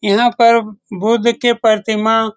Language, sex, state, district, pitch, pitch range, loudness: Hindi, male, Bihar, Saran, 225 Hz, 215-235 Hz, -14 LUFS